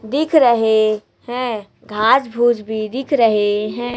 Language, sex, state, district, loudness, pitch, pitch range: Hindi, female, Chhattisgarh, Raipur, -16 LUFS, 230 Hz, 215-245 Hz